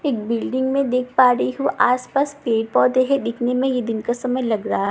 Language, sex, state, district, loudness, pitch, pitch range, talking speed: Hindi, female, Bihar, Katihar, -20 LUFS, 250 Hz, 230-265 Hz, 245 wpm